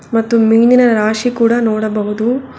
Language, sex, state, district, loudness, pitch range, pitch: Kannada, female, Karnataka, Bangalore, -13 LUFS, 215-240 Hz, 230 Hz